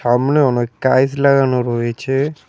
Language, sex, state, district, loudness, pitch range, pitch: Bengali, male, West Bengal, Cooch Behar, -16 LUFS, 120-140 Hz, 130 Hz